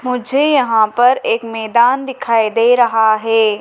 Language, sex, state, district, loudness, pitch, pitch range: Hindi, female, Madhya Pradesh, Dhar, -14 LUFS, 235 Hz, 225-250 Hz